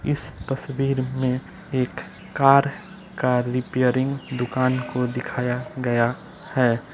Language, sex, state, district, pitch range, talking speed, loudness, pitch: Hindi, male, Bihar, East Champaran, 125-140 Hz, 105 wpm, -23 LUFS, 130 Hz